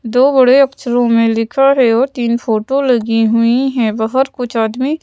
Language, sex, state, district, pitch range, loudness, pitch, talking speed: Hindi, female, Madhya Pradesh, Bhopal, 230-265 Hz, -13 LUFS, 245 Hz, 180 wpm